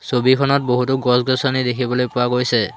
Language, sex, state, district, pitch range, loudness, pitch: Assamese, male, Assam, Hailakandi, 125-130 Hz, -17 LUFS, 125 Hz